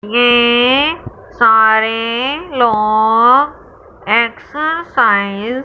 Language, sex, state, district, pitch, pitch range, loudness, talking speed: Hindi, female, Punjab, Fazilka, 240 Hz, 220-275 Hz, -12 LUFS, 55 wpm